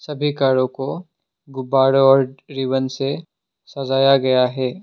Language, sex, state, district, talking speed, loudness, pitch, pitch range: Hindi, male, Assam, Sonitpur, 125 wpm, -18 LUFS, 135 Hz, 130-140 Hz